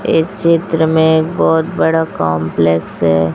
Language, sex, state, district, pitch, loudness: Hindi, female, Chhattisgarh, Raipur, 120 Hz, -14 LUFS